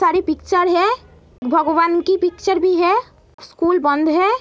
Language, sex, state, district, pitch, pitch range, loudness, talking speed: Hindi, female, Uttar Pradesh, Etah, 355 Hz, 330-375 Hz, -17 LUFS, 150 wpm